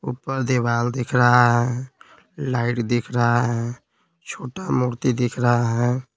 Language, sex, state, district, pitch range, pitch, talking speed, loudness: Hindi, male, Bihar, Patna, 120-125 Hz, 120 Hz, 135 wpm, -21 LUFS